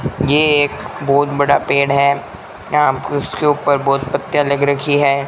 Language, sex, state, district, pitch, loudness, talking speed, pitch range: Hindi, male, Rajasthan, Bikaner, 140 Hz, -15 LUFS, 160 wpm, 140-145 Hz